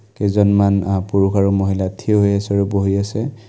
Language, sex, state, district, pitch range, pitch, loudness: Assamese, male, Assam, Kamrup Metropolitan, 100-105 Hz, 100 Hz, -17 LUFS